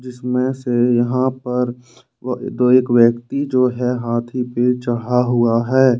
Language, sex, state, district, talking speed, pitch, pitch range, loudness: Hindi, male, Jharkhand, Ranchi, 140 wpm, 125 Hz, 120-125 Hz, -17 LUFS